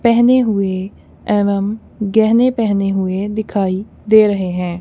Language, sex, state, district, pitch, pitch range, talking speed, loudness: Hindi, female, Punjab, Kapurthala, 205 Hz, 195-220 Hz, 125 wpm, -15 LUFS